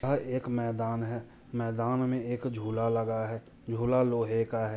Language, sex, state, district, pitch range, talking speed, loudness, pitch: Hindi, male, Bihar, Muzaffarpur, 115-125 Hz, 175 wpm, -31 LUFS, 115 Hz